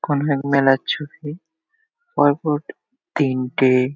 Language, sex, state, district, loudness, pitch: Bengali, male, West Bengal, Kolkata, -20 LUFS, 145 Hz